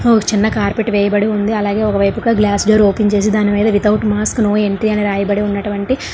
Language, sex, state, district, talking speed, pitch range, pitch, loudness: Telugu, female, Andhra Pradesh, Srikakulam, 215 wpm, 205-215 Hz, 210 Hz, -14 LUFS